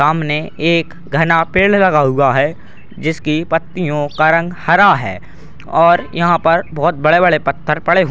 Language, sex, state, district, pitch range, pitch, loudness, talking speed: Hindi, male, Bihar, Purnia, 150-170 Hz, 165 Hz, -14 LUFS, 155 wpm